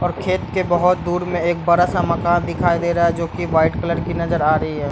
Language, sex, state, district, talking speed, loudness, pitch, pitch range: Hindi, male, Bihar, Bhagalpur, 280 wpm, -18 LUFS, 170 Hz, 170-175 Hz